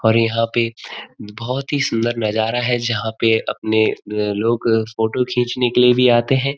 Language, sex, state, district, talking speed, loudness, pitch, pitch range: Hindi, male, Uttarakhand, Uttarkashi, 200 wpm, -18 LUFS, 115 Hz, 110-125 Hz